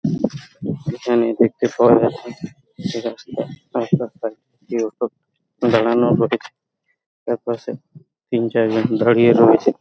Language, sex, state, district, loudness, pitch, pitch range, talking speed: Bengali, male, West Bengal, Paschim Medinipur, -19 LUFS, 120 Hz, 115-120 Hz, 105 wpm